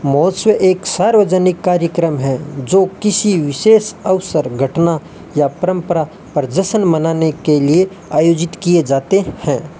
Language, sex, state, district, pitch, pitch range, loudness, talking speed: Hindi, male, Rajasthan, Bikaner, 170 Hz, 150-190 Hz, -14 LUFS, 120 wpm